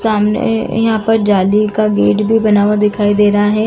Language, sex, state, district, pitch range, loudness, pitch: Hindi, female, Uttar Pradesh, Muzaffarnagar, 205-220 Hz, -13 LUFS, 210 Hz